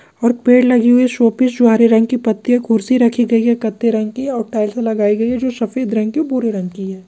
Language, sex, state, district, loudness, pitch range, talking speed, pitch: Hindi, male, Andhra Pradesh, Visakhapatnam, -15 LUFS, 220-245 Hz, 60 wpm, 235 Hz